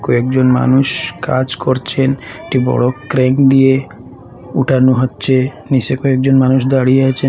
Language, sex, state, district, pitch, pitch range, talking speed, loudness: Bengali, male, Assam, Hailakandi, 130 Hz, 130-135 Hz, 125 wpm, -13 LUFS